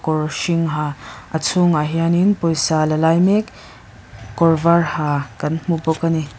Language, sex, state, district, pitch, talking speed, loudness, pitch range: Mizo, female, Mizoram, Aizawl, 160 Hz, 160 wpm, -18 LUFS, 150-170 Hz